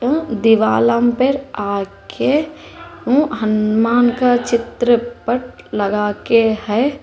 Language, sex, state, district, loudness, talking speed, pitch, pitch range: Hindi, female, Telangana, Hyderabad, -16 LUFS, 75 wpm, 235 Hz, 215-250 Hz